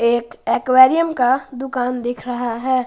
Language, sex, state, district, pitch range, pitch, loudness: Hindi, female, Jharkhand, Garhwa, 245-260 Hz, 250 Hz, -18 LUFS